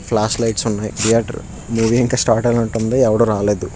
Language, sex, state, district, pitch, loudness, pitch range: Telugu, male, Andhra Pradesh, Srikakulam, 115 Hz, -17 LUFS, 110-115 Hz